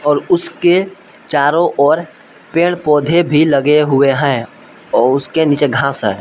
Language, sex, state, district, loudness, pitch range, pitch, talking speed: Hindi, male, Jharkhand, Palamu, -13 LUFS, 140-175 Hz, 150 Hz, 145 wpm